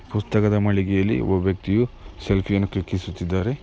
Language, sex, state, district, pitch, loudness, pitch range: Kannada, male, Karnataka, Mysore, 100 Hz, -22 LUFS, 95-105 Hz